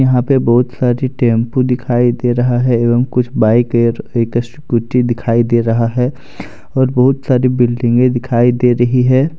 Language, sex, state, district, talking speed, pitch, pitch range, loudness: Hindi, male, Jharkhand, Deoghar, 170 wpm, 125 Hz, 120-125 Hz, -13 LUFS